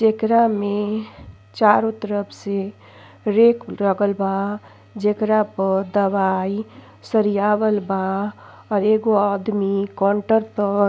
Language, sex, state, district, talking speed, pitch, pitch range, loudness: Bhojpuri, female, Uttar Pradesh, Ghazipur, 105 wpm, 205 Hz, 195-215 Hz, -20 LUFS